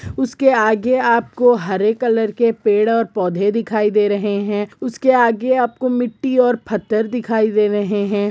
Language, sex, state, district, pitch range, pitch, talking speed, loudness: Hindi, female, Jharkhand, Sahebganj, 210-245 Hz, 225 Hz, 175 wpm, -17 LUFS